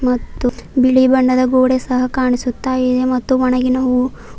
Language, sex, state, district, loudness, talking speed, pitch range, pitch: Kannada, female, Karnataka, Bidar, -15 LUFS, 135 wpm, 250-255 Hz, 255 Hz